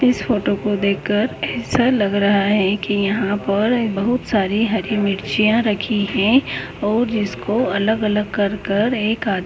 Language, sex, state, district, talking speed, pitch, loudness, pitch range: Hindi, male, West Bengal, Paschim Medinipur, 150 wpm, 210 Hz, -18 LUFS, 200-220 Hz